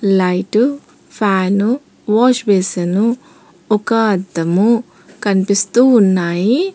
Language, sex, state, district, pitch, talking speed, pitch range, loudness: Telugu, female, Telangana, Hyderabad, 205 Hz, 70 wpm, 190-235 Hz, -15 LUFS